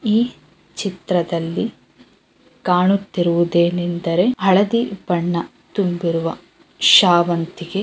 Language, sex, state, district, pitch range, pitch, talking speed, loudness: Kannada, female, Karnataka, Bellary, 170-195 Hz, 175 Hz, 60 wpm, -18 LUFS